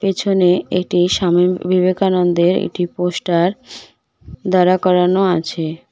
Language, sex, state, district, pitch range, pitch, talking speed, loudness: Bengali, female, West Bengal, Cooch Behar, 175-185 Hz, 180 Hz, 100 wpm, -16 LUFS